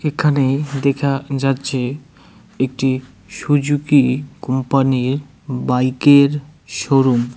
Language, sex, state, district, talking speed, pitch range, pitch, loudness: Bengali, male, West Bengal, Cooch Behar, 90 wpm, 130-145 Hz, 135 Hz, -17 LUFS